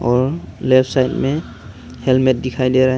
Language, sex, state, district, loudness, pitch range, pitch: Hindi, male, Arunachal Pradesh, Longding, -17 LUFS, 125-130 Hz, 130 Hz